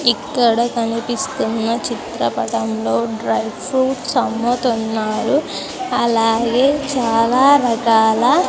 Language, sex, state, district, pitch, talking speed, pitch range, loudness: Telugu, female, Andhra Pradesh, Sri Satya Sai, 235 Hz, 70 wpm, 225-250 Hz, -17 LUFS